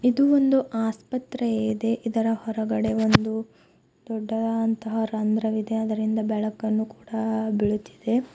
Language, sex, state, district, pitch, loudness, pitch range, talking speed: Kannada, female, Karnataka, Bidar, 220 Hz, -25 LUFS, 220-225 Hz, 95 wpm